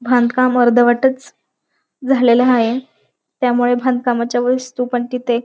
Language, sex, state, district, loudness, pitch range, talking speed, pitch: Marathi, female, Maharashtra, Dhule, -15 LUFS, 240-255 Hz, 100 wpm, 245 Hz